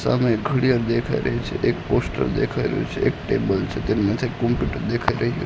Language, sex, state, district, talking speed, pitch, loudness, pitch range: Gujarati, male, Gujarat, Gandhinagar, 195 wpm, 120 Hz, -22 LUFS, 115-130 Hz